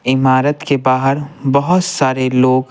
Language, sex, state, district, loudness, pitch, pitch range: Hindi, male, Bihar, Patna, -14 LUFS, 135 Hz, 130-140 Hz